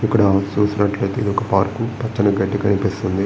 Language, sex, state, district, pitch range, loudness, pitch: Telugu, male, Andhra Pradesh, Srikakulam, 100-105 Hz, -19 LUFS, 100 Hz